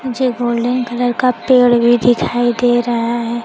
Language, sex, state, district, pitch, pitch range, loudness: Hindi, female, Bihar, Kaimur, 240 Hz, 235-245 Hz, -14 LUFS